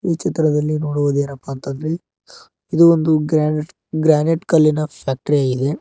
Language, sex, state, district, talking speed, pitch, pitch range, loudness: Kannada, male, Karnataka, Koppal, 135 wpm, 155 Hz, 145-160 Hz, -18 LUFS